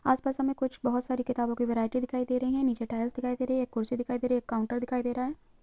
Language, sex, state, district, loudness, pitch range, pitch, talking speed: Hindi, female, Chhattisgarh, Sukma, -30 LUFS, 240-255 Hz, 250 Hz, 330 wpm